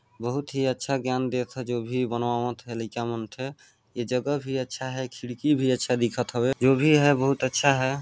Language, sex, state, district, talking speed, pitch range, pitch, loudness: Hindi, male, Chhattisgarh, Balrampur, 215 wpm, 120-135 Hz, 130 Hz, -26 LUFS